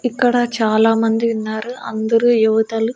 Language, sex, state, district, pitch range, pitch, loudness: Telugu, female, Andhra Pradesh, Annamaya, 220-240 Hz, 225 Hz, -17 LUFS